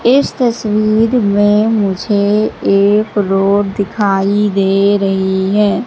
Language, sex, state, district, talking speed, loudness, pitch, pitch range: Hindi, female, Madhya Pradesh, Katni, 100 wpm, -13 LUFS, 205 Hz, 195-215 Hz